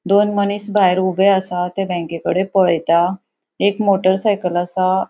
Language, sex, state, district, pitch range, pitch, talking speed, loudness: Konkani, female, Goa, North and South Goa, 180-200 Hz, 190 Hz, 140 wpm, -17 LUFS